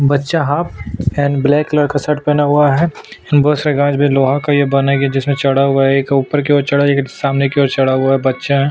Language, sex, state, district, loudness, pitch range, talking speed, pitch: Hindi, male, Chhattisgarh, Sukma, -14 LUFS, 135-145 Hz, 255 wpm, 140 Hz